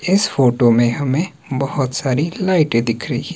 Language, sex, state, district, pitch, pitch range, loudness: Hindi, male, Himachal Pradesh, Shimla, 135 Hz, 125-165 Hz, -17 LUFS